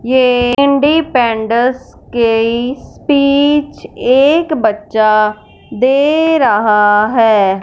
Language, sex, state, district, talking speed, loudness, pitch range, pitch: Hindi, female, Punjab, Fazilka, 70 wpm, -12 LUFS, 220-280 Hz, 245 Hz